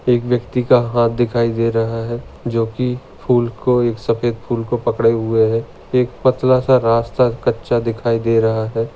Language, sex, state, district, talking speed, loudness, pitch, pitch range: Hindi, male, Maharashtra, Sindhudurg, 190 wpm, -17 LUFS, 120 Hz, 115-125 Hz